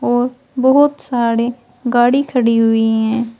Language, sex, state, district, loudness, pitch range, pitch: Hindi, female, Uttar Pradesh, Shamli, -15 LUFS, 230-255 Hz, 240 Hz